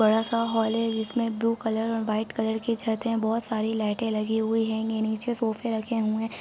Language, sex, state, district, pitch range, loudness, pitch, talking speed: Hindi, female, Bihar, Saran, 220-230 Hz, -27 LUFS, 225 Hz, 225 wpm